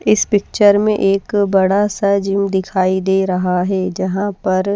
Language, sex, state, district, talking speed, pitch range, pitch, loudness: Hindi, female, Bihar, Patna, 165 wpm, 190-205 Hz, 195 Hz, -16 LUFS